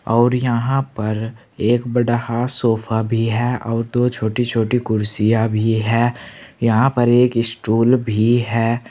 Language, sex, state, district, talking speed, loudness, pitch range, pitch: Hindi, male, Uttar Pradesh, Saharanpur, 150 wpm, -18 LUFS, 110-120 Hz, 115 Hz